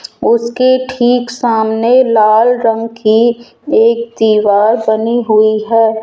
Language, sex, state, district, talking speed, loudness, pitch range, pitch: Hindi, female, Rajasthan, Jaipur, 110 wpm, -11 LUFS, 220-245 Hz, 230 Hz